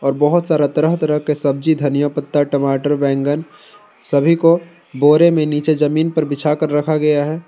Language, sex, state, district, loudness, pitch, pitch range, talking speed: Hindi, male, Jharkhand, Ranchi, -16 LUFS, 150 Hz, 145-160 Hz, 170 wpm